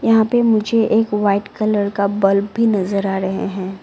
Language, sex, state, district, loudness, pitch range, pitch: Hindi, female, Arunachal Pradesh, Lower Dibang Valley, -17 LUFS, 195-225 Hz, 205 Hz